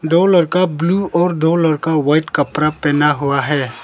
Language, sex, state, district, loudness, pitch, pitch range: Hindi, male, Arunachal Pradesh, Lower Dibang Valley, -15 LUFS, 160 Hz, 150-170 Hz